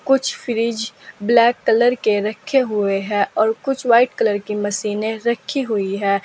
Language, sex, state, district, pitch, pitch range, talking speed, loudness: Hindi, female, Uttar Pradesh, Saharanpur, 220 Hz, 205-240 Hz, 165 wpm, -19 LUFS